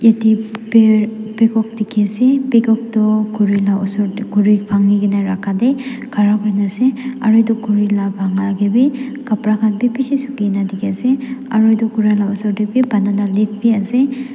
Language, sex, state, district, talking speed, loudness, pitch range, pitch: Nagamese, female, Nagaland, Dimapur, 165 wpm, -15 LUFS, 205-235 Hz, 215 Hz